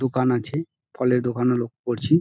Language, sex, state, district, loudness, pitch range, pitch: Bengali, male, West Bengal, Dakshin Dinajpur, -23 LUFS, 120-130 Hz, 125 Hz